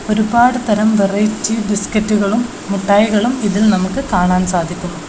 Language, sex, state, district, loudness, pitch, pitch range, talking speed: Malayalam, female, Kerala, Kozhikode, -15 LUFS, 210 Hz, 195-220 Hz, 105 wpm